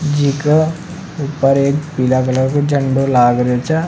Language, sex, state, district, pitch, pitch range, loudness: Rajasthani, male, Rajasthan, Nagaur, 140 Hz, 130-155 Hz, -15 LUFS